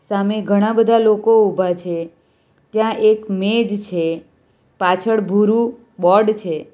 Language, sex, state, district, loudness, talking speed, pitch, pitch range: Gujarati, female, Gujarat, Valsad, -17 LUFS, 125 wpm, 210 Hz, 180-220 Hz